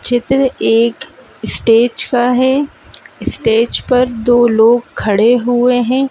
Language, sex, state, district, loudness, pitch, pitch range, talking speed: Hindi, male, Madhya Pradesh, Bhopal, -13 LUFS, 245 Hz, 230-250 Hz, 120 wpm